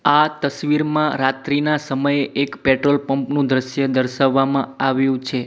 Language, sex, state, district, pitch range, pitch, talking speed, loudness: Gujarati, male, Gujarat, Gandhinagar, 135-145 Hz, 140 Hz, 130 wpm, -19 LUFS